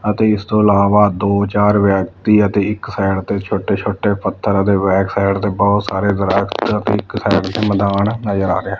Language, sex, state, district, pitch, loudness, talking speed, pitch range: Punjabi, male, Punjab, Fazilka, 100 Hz, -15 LUFS, 205 wpm, 100-105 Hz